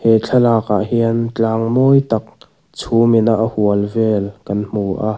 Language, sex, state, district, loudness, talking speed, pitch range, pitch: Mizo, male, Mizoram, Aizawl, -16 LUFS, 160 wpm, 105-115 Hz, 110 Hz